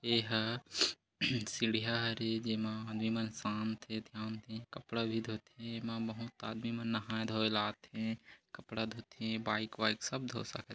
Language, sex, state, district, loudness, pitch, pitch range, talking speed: Hindi, male, Chhattisgarh, Korba, -38 LUFS, 110 Hz, 110-115 Hz, 175 wpm